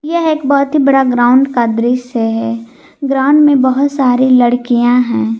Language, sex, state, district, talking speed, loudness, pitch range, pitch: Hindi, female, Jharkhand, Garhwa, 165 wpm, -11 LUFS, 240-275 Hz, 255 Hz